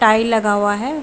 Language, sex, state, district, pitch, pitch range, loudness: Hindi, female, Bihar, Saran, 220 Hz, 205-230 Hz, -16 LUFS